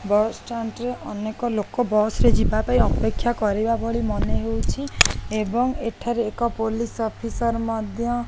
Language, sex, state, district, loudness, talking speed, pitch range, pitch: Odia, female, Odisha, Khordha, -23 LUFS, 140 wpm, 220-240 Hz, 230 Hz